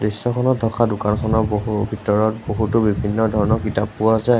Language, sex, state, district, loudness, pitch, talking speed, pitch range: Assamese, male, Assam, Sonitpur, -19 LUFS, 110 Hz, 150 wpm, 105-110 Hz